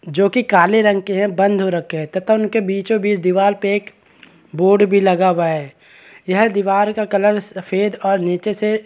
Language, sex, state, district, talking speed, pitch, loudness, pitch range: Hindi, male, Chhattisgarh, Balrampur, 185 wpm, 200 Hz, -16 LUFS, 185-210 Hz